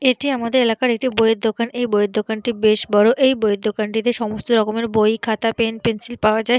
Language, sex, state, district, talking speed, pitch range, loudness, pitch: Bengali, female, West Bengal, Purulia, 200 wpm, 215-240 Hz, -18 LUFS, 225 Hz